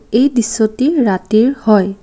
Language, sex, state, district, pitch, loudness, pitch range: Assamese, female, Assam, Kamrup Metropolitan, 225 Hz, -13 LUFS, 210-255 Hz